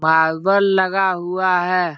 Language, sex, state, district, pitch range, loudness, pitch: Hindi, male, Bihar, Jahanabad, 170-190 Hz, -17 LUFS, 185 Hz